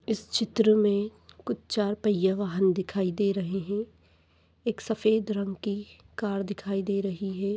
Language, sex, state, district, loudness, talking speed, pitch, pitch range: Hindi, female, Maharashtra, Nagpur, -28 LUFS, 160 wpm, 200 Hz, 195-215 Hz